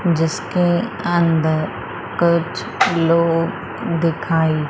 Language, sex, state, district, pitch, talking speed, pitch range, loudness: Hindi, female, Madhya Pradesh, Umaria, 165 Hz, 65 wpm, 165-175 Hz, -18 LUFS